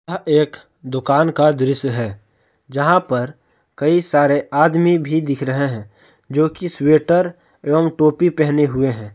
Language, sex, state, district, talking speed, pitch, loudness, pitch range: Hindi, male, Jharkhand, Palamu, 150 wpm, 150 Hz, -17 LUFS, 135-160 Hz